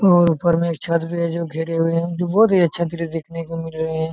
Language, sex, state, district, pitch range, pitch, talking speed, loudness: Hindi, male, Jharkhand, Jamtara, 165-170 Hz, 170 Hz, 290 wpm, -20 LUFS